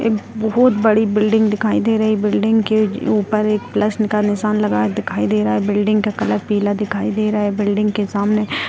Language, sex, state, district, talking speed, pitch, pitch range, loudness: Hindi, female, Bihar, Darbhanga, 205 wpm, 210 Hz, 205-215 Hz, -17 LUFS